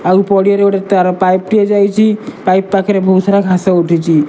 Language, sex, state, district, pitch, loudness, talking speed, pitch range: Odia, male, Odisha, Malkangiri, 195 Hz, -11 LUFS, 180 wpm, 185-200 Hz